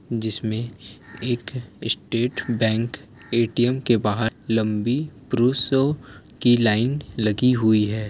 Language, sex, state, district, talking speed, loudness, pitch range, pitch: Hindi, male, Jharkhand, Jamtara, 105 wpm, -21 LUFS, 110-125 Hz, 115 Hz